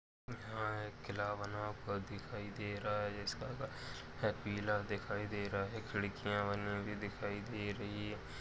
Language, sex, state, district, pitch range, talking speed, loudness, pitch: Hindi, male, Uttar Pradesh, Jalaun, 100-105 Hz, 165 wpm, -41 LUFS, 105 Hz